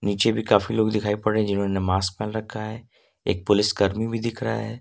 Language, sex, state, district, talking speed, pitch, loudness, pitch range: Hindi, male, Jharkhand, Ranchi, 250 wpm, 105 Hz, -24 LUFS, 100-115 Hz